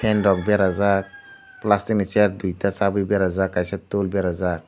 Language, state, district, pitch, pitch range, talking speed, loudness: Kokborok, Tripura, Dhalai, 100 Hz, 95-105 Hz, 155 wpm, -21 LUFS